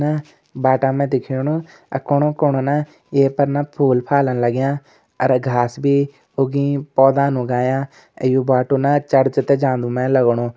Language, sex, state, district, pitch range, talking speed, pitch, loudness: Garhwali, male, Uttarakhand, Uttarkashi, 130-140 Hz, 155 wpm, 135 Hz, -18 LUFS